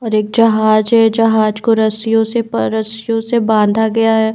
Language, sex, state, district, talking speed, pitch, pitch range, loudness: Hindi, female, Bihar, Patna, 180 wpm, 220 Hz, 215-225 Hz, -13 LUFS